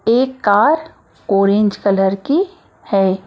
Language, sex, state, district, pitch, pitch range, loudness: Hindi, female, Maharashtra, Mumbai Suburban, 205 Hz, 195-270 Hz, -16 LUFS